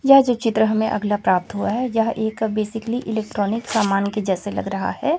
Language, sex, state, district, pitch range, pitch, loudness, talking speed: Hindi, female, Chhattisgarh, Raipur, 205-230 Hz, 220 Hz, -21 LUFS, 210 wpm